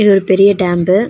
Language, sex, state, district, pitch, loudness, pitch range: Tamil, female, Tamil Nadu, Nilgiris, 195 Hz, -11 LUFS, 185-200 Hz